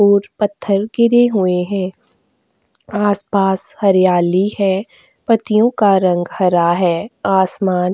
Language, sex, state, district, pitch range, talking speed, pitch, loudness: Hindi, female, Goa, North and South Goa, 185-210 Hz, 115 wpm, 195 Hz, -15 LUFS